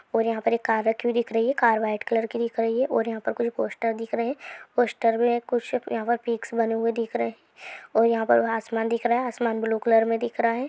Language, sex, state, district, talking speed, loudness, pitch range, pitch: Hindi, female, Andhra Pradesh, Visakhapatnam, 270 wpm, -25 LUFS, 225-235 Hz, 230 Hz